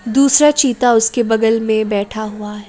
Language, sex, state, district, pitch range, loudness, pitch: Hindi, female, Uttar Pradesh, Jalaun, 215-250 Hz, -14 LUFS, 225 Hz